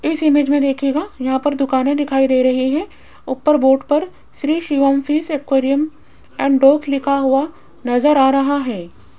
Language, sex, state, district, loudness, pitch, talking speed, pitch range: Hindi, female, Rajasthan, Jaipur, -16 LUFS, 275 Hz, 165 wpm, 265-295 Hz